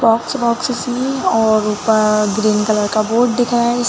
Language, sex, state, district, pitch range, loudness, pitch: Hindi, female, Chhattisgarh, Bilaspur, 215-245 Hz, -15 LUFS, 230 Hz